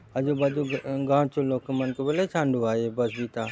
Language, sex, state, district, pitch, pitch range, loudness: Halbi, male, Chhattisgarh, Bastar, 135 Hz, 120-145 Hz, -26 LUFS